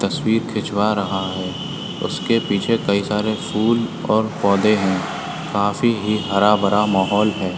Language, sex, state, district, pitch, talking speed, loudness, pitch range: Hindi, male, Uttar Pradesh, Etah, 105 Hz, 145 wpm, -19 LUFS, 100-110 Hz